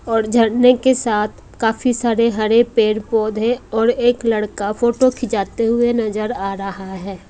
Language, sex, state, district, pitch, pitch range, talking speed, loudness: Hindi, female, Odisha, Malkangiri, 225 Hz, 215-240 Hz, 155 wpm, -17 LUFS